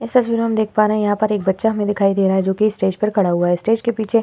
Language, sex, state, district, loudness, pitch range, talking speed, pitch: Hindi, female, Uttar Pradesh, Hamirpur, -17 LUFS, 195-220 Hz, 355 wpm, 210 Hz